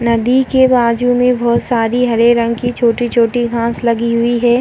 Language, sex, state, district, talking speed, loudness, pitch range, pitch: Hindi, female, Uttar Pradesh, Gorakhpur, 180 wpm, -13 LUFS, 235-245 Hz, 235 Hz